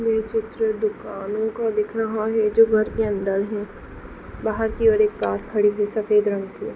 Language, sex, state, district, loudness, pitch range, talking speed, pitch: Hindi, female, Bihar, Sitamarhi, -22 LUFS, 210-225 Hz, 195 wpm, 215 Hz